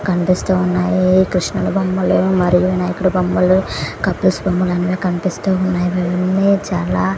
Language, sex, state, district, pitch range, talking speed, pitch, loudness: Telugu, female, Andhra Pradesh, Guntur, 180-185 Hz, 75 wpm, 185 Hz, -16 LUFS